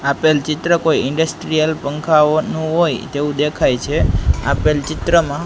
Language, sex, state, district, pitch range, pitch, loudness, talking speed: Gujarati, male, Gujarat, Gandhinagar, 145-160 Hz, 155 Hz, -17 LUFS, 120 wpm